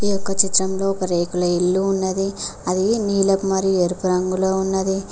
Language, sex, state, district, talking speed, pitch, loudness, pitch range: Telugu, female, Telangana, Mahabubabad, 115 wpm, 190 Hz, -20 LUFS, 185-195 Hz